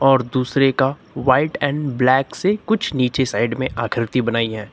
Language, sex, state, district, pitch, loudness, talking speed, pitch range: Hindi, male, Uttar Pradesh, Lucknow, 130 Hz, -19 LUFS, 175 wpm, 120-140 Hz